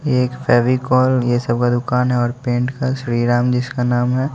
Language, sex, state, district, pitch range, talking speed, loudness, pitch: Hindi, male, Bihar, West Champaran, 120-130 Hz, 205 wpm, -17 LUFS, 125 Hz